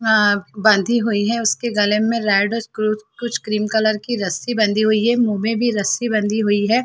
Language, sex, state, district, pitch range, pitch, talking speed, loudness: Hindi, female, Chhattisgarh, Bilaspur, 210-230 Hz, 215 Hz, 220 wpm, -18 LUFS